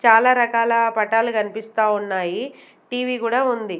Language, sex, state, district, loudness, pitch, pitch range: Telugu, female, Andhra Pradesh, Sri Satya Sai, -20 LUFS, 225 Hz, 215-240 Hz